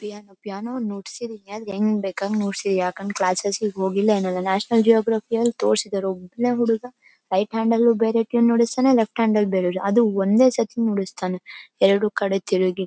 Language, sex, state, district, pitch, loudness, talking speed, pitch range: Kannada, female, Karnataka, Bellary, 210 Hz, -21 LUFS, 160 wpm, 195-230 Hz